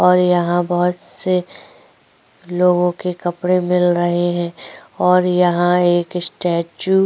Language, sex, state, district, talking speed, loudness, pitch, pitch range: Hindi, female, Uttar Pradesh, Jyotiba Phule Nagar, 125 wpm, -17 LUFS, 180 Hz, 175-180 Hz